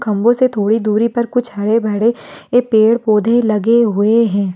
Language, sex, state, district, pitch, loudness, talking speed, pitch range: Hindi, female, Rajasthan, Churu, 225 Hz, -14 LUFS, 170 wpm, 210-235 Hz